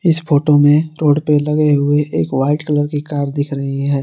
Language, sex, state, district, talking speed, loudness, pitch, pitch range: Hindi, male, Jharkhand, Garhwa, 225 wpm, -15 LUFS, 145 Hz, 145-150 Hz